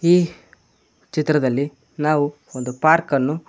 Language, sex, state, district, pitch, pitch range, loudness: Kannada, male, Karnataka, Koppal, 150 Hz, 140-155 Hz, -20 LUFS